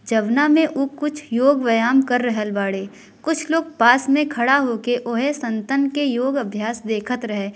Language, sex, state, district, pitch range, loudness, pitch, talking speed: Bhojpuri, female, Bihar, Gopalganj, 225-280 Hz, -19 LUFS, 245 Hz, 175 wpm